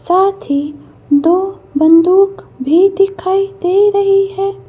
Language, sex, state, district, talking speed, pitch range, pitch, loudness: Hindi, female, Madhya Pradesh, Bhopal, 115 wpm, 325-390 Hz, 380 Hz, -12 LUFS